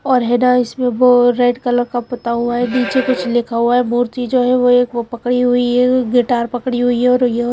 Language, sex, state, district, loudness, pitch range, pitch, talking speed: Hindi, female, Madhya Pradesh, Bhopal, -15 LUFS, 245-250 Hz, 245 Hz, 255 wpm